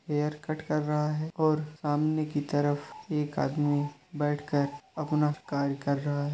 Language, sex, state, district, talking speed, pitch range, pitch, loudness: Hindi, male, Uttar Pradesh, Budaun, 150 wpm, 145-150 Hz, 150 Hz, -30 LUFS